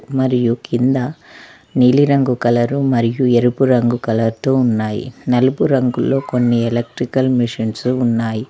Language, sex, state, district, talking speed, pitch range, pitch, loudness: Telugu, female, Telangana, Mahabubabad, 120 wpm, 120-130 Hz, 125 Hz, -16 LUFS